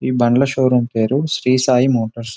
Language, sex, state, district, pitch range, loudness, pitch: Telugu, male, Telangana, Nalgonda, 120-130 Hz, -16 LUFS, 125 Hz